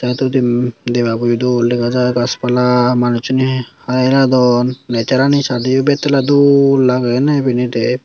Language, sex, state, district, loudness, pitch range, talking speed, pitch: Chakma, female, Tripura, Unakoti, -14 LUFS, 120-130 Hz, 135 wpm, 125 Hz